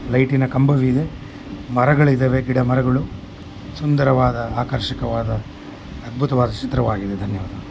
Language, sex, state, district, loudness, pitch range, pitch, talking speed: Kannada, male, Karnataka, Mysore, -19 LUFS, 110-130 Hz, 125 Hz, 45 wpm